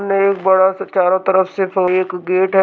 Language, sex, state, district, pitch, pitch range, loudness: Hindi, male, Uttar Pradesh, Budaun, 190 Hz, 185-195 Hz, -15 LUFS